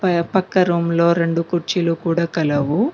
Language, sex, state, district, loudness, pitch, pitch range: Telugu, female, Telangana, Mahabubabad, -18 LUFS, 170 Hz, 165-180 Hz